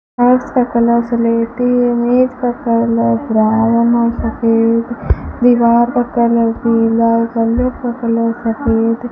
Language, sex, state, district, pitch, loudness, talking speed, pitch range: Hindi, female, Rajasthan, Bikaner, 235 Hz, -14 LUFS, 130 wpm, 230-245 Hz